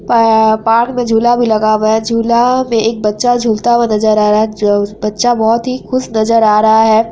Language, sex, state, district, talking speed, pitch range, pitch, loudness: Hindi, female, Bihar, Araria, 225 wpm, 215-240 Hz, 225 Hz, -11 LUFS